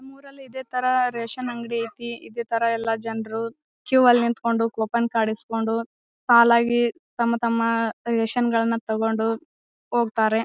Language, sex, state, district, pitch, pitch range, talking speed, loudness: Kannada, female, Karnataka, Bijapur, 235 Hz, 225-240 Hz, 125 wpm, -23 LUFS